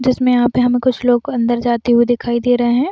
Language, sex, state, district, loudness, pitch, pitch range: Hindi, female, Jharkhand, Sahebganj, -15 LUFS, 245 Hz, 240-250 Hz